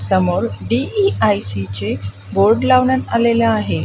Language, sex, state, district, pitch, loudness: Marathi, female, Maharashtra, Gondia, 115 Hz, -16 LUFS